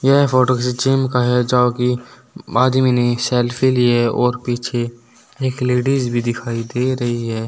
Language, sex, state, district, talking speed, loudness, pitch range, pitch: Hindi, male, Uttar Pradesh, Saharanpur, 185 wpm, -17 LUFS, 120-130 Hz, 125 Hz